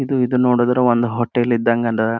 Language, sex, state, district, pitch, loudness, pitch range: Kannada, male, Karnataka, Gulbarga, 120 Hz, -17 LUFS, 115-125 Hz